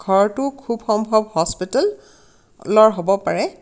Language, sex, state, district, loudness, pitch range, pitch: Assamese, female, Assam, Kamrup Metropolitan, -18 LUFS, 195-235 Hz, 215 Hz